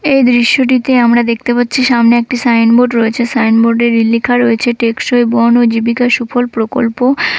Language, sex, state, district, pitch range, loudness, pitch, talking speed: Bengali, female, West Bengal, Dakshin Dinajpur, 230-245 Hz, -11 LUFS, 240 Hz, 155 wpm